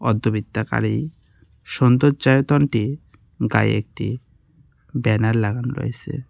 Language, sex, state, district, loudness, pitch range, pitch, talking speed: Bengali, male, West Bengal, Cooch Behar, -20 LUFS, 110-135 Hz, 120 Hz, 75 wpm